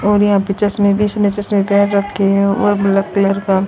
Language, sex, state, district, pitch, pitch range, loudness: Hindi, female, Haryana, Jhajjar, 200 Hz, 195-205 Hz, -14 LUFS